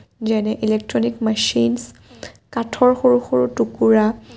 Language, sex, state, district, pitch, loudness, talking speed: Assamese, female, Assam, Kamrup Metropolitan, 215 Hz, -18 LUFS, 110 wpm